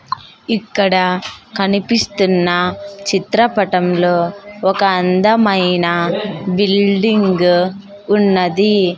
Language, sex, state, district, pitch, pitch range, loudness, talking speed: Telugu, female, Andhra Pradesh, Sri Satya Sai, 195 Hz, 180-205 Hz, -15 LUFS, 45 wpm